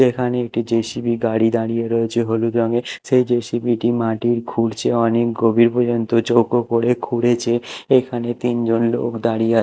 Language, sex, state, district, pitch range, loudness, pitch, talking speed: Bengali, male, Odisha, Malkangiri, 115-120 Hz, -18 LUFS, 115 Hz, 150 wpm